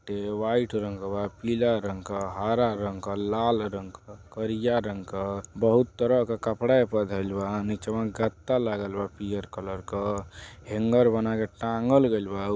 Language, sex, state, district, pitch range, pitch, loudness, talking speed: Bhojpuri, male, Uttar Pradesh, Deoria, 100-115 Hz, 105 Hz, -27 LUFS, 160 wpm